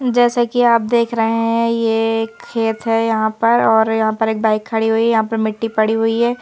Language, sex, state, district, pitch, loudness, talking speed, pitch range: Hindi, female, Madhya Pradesh, Bhopal, 225 Hz, -16 LUFS, 235 wpm, 220-230 Hz